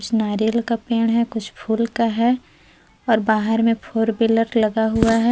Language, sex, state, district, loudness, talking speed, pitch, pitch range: Hindi, female, Jharkhand, Palamu, -20 LUFS, 170 wpm, 225 Hz, 220-230 Hz